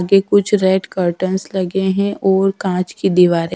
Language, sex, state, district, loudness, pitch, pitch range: Hindi, female, Haryana, Rohtak, -16 LUFS, 190 Hz, 180-195 Hz